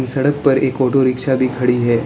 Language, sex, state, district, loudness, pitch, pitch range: Hindi, male, Arunachal Pradesh, Lower Dibang Valley, -16 LUFS, 130 Hz, 125-135 Hz